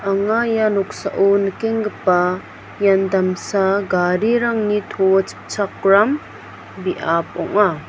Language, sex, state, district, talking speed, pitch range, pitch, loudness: Garo, female, Meghalaya, North Garo Hills, 85 wpm, 190-210 Hz, 195 Hz, -18 LUFS